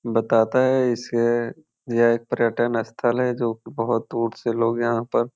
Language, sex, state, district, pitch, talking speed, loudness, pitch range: Hindi, male, Uttar Pradesh, Varanasi, 115 Hz, 190 wpm, -22 LUFS, 115-120 Hz